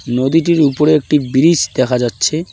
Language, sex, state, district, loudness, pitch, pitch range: Bengali, male, West Bengal, Cooch Behar, -13 LUFS, 145 Hz, 130-155 Hz